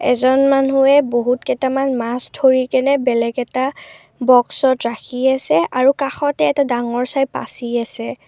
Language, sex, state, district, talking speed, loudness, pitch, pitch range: Assamese, female, Assam, Kamrup Metropolitan, 130 wpm, -16 LUFS, 260 Hz, 245-270 Hz